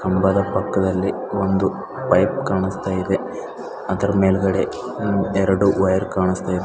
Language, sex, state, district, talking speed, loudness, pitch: Kannada, male, Karnataka, Bidar, 90 wpm, -20 LUFS, 95 Hz